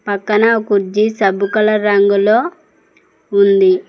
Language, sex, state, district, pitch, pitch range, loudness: Telugu, female, Telangana, Mahabubabad, 205 Hz, 200-215 Hz, -13 LUFS